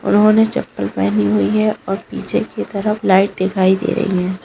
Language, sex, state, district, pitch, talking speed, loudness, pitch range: Hindi, female, Bihar, Jahanabad, 190 Hz, 190 wpm, -16 LUFS, 180-215 Hz